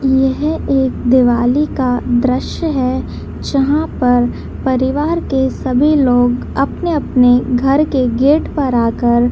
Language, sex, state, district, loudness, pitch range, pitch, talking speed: Hindi, female, Bihar, Madhepura, -14 LUFS, 245-285 Hz, 260 Hz, 120 wpm